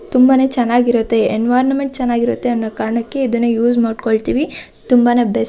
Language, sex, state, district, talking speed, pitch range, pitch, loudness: Kannada, female, Karnataka, Shimoga, 140 wpm, 230-260 Hz, 240 Hz, -15 LUFS